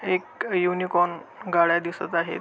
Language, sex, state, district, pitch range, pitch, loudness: Marathi, male, Maharashtra, Aurangabad, 170-180 Hz, 175 Hz, -24 LUFS